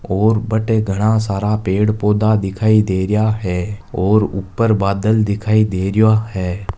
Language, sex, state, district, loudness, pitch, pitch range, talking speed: Marwari, male, Rajasthan, Nagaur, -16 LUFS, 105 Hz, 95-110 Hz, 150 wpm